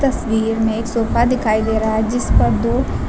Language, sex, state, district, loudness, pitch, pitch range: Hindi, female, Uttar Pradesh, Lucknow, -17 LUFS, 225 Hz, 220-235 Hz